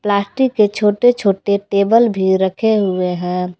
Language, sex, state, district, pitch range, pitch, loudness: Hindi, female, Jharkhand, Garhwa, 190-220 Hz, 200 Hz, -15 LUFS